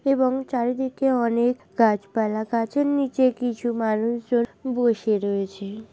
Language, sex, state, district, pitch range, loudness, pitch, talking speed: Bengali, female, West Bengal, North 24 Parganas, 220-255 Hz, -23 LUFS, 235 Hz, 110 wpm